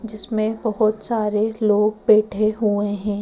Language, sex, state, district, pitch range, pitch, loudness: Hindi, female, Madhya Pradesh, Bhopal, 210-220 Hz, 215 Hz, -18 LUFS